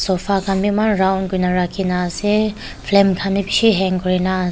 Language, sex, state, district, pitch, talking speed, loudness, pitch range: Nagamese, female, Nagaland, Kohima, 190 Hz, 210 wpm, -17 LUFS, 185-200 Hz